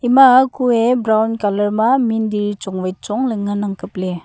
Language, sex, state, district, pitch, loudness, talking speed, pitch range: Wancho, female, Arunachal Pradesh, Longding, 220 Hz, -16 LUFS, 185 wpm, 205-245 Hz